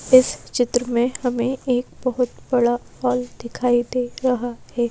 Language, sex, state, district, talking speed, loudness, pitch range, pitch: Hindi, female, Madhya Pradesh, Bhopal, 135 wpm, -21 LUFS, 240-255 Hz, 245 Hz